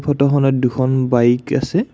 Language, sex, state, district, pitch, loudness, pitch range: Assamese, male, Assam, Kamrup Metropolitan, 135 Hz, -16 LUFS, 125-140 Hz